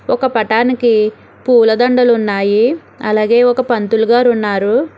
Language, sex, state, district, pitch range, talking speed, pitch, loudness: Telugu, female, Telangana, Hyderabad, 215-245 Hz, 120 wpm, 230 Hz, -13 LUFS